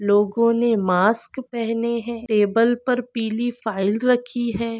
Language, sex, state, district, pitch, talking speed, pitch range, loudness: Hindi, female, Maharashtra, Aurangabad, 230 Hz, 140 wpm, 220-240 Hz, -21 LUFS